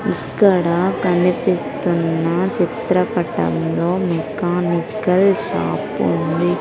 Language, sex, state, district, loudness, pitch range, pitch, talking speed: Telugu, female, Andhra Pradesh, Sri Satya Sai, -18 LUFS, 170-185 Hz, 180 Hz, 55 wpm